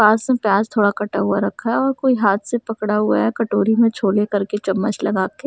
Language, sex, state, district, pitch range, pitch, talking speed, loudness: Hindi, female, Haryana, Charkhi Dadri, 205-225 Hz, 210 Hz, 250 wpm, -18 LUFS